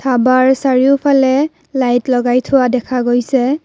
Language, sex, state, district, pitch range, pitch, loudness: Assamese, female, Assam, Kamrup Metropolitan, 250-270 Hz, 260 Hz, -13 LUFS